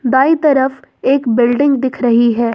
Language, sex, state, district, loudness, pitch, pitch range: Hindi, female, Jharkhand, Ranchi, -13 LUFS, 260 Hz, 240-270 Hz